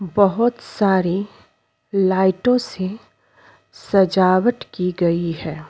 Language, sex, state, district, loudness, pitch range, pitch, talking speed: Hindi, female, Uttar Pradesh, Jyotiba Phule Nagar, -19 LUFS, 175-200 Hz, 190 Hz, 85 wpm